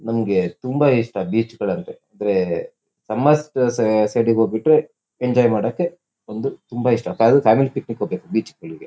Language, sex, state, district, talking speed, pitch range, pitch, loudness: Kannada, male, Karnataka, Shimoga, 140 wpm, 110-140 Hz, 120 Hz, -19 LUFS